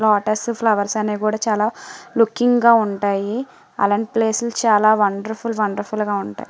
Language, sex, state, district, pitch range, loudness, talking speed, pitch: Telugu, female, Andhra Pradesh, Srikakulam, 210-230 Hz, -19 LUFS, 155 wpm, 215 Hz